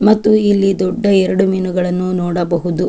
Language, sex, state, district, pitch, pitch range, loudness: Kannada, female, Karnataka, Chamarajanagar, 185 Hz, 180-200 Hz, -14 LUFS